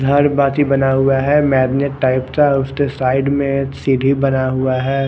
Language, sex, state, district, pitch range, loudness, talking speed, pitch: Hindi, male, Odisha, Khordha, 135-140 Hz, -15 LUFS, 190 wpm, 135 Hz